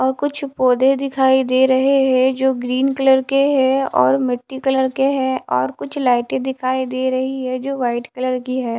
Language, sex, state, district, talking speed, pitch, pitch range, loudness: Hindi, female, Haryana, Charkhi Dadri, 200 wpm, 260 Hz, 255-270 Hz, -17 LUFS